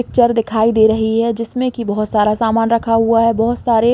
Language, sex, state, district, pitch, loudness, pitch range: Hindi, female, Uttar Pradesh, Varanasi, 230 Hz, -15 LUFS, 220-235 Hz